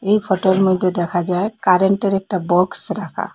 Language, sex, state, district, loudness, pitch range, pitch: Bengali, female, Assam, Hailakandi, -17 LUFS, 180-195 Hz, 190 Hz